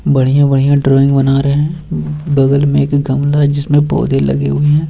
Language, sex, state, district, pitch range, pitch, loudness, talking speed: Hindi, male, Bihar, Bhagalpur, 135-145 Hz, 140 Hz, -12 LUFS, 185 wpm